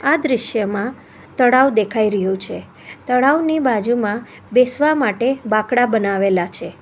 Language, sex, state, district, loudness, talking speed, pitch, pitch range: Gujarati, female, Gujarat, Valsad, -17 LUFS, 115 wpm, 235 Hz, 205-255 Hz